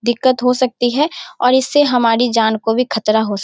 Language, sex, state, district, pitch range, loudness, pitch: Hindi, female, Bihar, Darbhanga, 225-255 Hz, -15 LUFS, 245 Hz